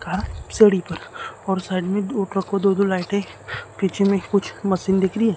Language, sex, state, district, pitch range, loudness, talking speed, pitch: Hindi, male, Maharashtra, Gondia, 190-200 Hz, -21 LUFS, 200 wpm, 195 Hz